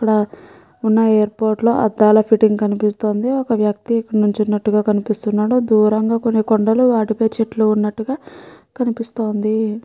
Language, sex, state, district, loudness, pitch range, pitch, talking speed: Telugu, female, Andhra Pradesh, Srikakulam, -17 LUFS, 215-225 Hz, 220 Hz, 115 wpm